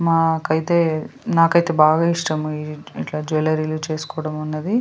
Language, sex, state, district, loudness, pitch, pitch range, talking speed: Telugu, female, Telangana, Nalgonda, -20 LUFS, 155 Hz, 155-165 Hz, 100 wpm